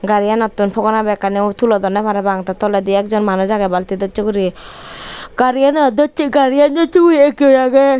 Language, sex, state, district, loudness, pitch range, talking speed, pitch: Chakma, female, Tripura, Dhalai, -14 LUFS, 200-275 Hz, 165 wpm, 215 Hz